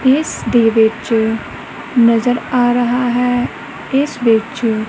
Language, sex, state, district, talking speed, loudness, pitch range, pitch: Punjabi, female, Punjab, Kapurthala, 110 wpm, -15 LUFS, 225-245 Hz, 240 Hz